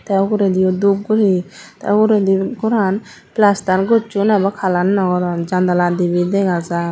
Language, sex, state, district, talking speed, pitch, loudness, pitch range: Chakma, female, Tripura, Dhalai, 150 wpm, 195 Hz, -16 LUFS, 180-205 Hz